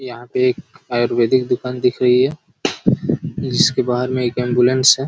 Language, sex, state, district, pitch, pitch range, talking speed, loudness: Hindi, male, Chhattisgarh, Raigarh, 125 Hz, 125-130 Hz, 165 wpm, -18 LUFS